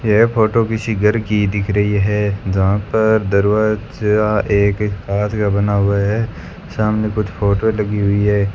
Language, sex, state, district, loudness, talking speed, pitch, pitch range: Hindi, male, Rajasthan, Bikaner, -16 LUFS, 160 wpm, 105 Hz, 100-110 Hz